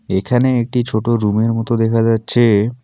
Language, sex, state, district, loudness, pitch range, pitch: Bengali, male, West Bengal, Alipurduar, -15 LUFS, 110-120 Hz, 115 Hz